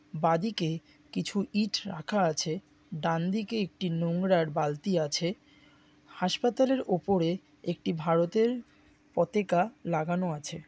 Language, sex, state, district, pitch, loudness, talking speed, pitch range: Bengali, male, West Bengal, Malda, 175 Hz, -30 LUFS, 100 wpm, 160-200 Hz